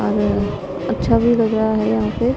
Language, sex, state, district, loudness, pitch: Hindi, female, Punjab, Pathankot, -18 LUFS, 185 Hz